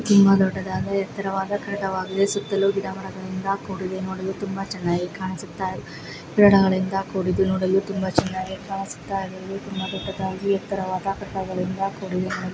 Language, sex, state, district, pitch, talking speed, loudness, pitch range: Kannada, female, Karnataka, Gulbarga, 190 Hz, 105 wpm, -24 LUFS, 185-195 Hz